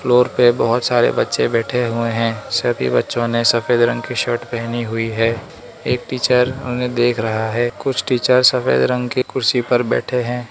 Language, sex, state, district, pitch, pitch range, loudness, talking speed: Hindi, male, Arunachal Pradesh, Lower Dibang Valley, 120 Hz, 115-125 Hz, -17 LUFS, 180 wpm